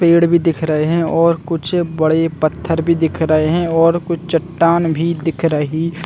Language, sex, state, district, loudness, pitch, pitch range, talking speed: Hindi, male, Chhattisgarh, Bilaspur, -16 LUFS, 165 Hz, 160-170 Hz, 190 wpm